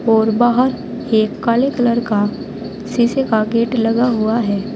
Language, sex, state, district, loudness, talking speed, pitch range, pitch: Hindi, female, Uttar Pradesh, Saharanpur, -16 LUFS, 150 wpm, 220-240 Hz, 230 Hz